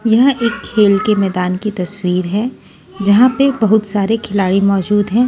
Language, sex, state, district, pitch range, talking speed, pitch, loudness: Hindi, female, Haryana, Charkhi Dadri, 195-225 Hz, 170 wpm, 210 Hz, -14 LUFS